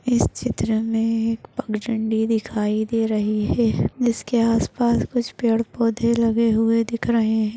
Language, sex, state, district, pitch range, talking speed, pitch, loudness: Hindi, female, Maharashtra, Aurangabad, 220-235 Hz, 160 wpm, 225 Hz, -21 LUFS